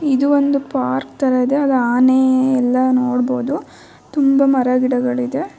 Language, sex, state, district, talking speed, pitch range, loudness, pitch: Kannada, female, Karnataka, Bijapur, 130 wpm, 250-275 Hz, -16 LUFS, 260 Hz